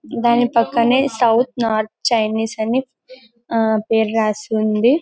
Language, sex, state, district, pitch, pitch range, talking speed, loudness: Telugu, female, Telangana, Karimnagar, 230 Hz, 220-245 Hz, 130 wpm, -17 LUFS